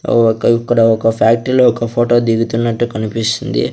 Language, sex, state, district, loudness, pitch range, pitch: Telugu, male, Andhra Pradesh, Sri Satya Sai, -14 LUFS, 115-120 Hz, 115 Hz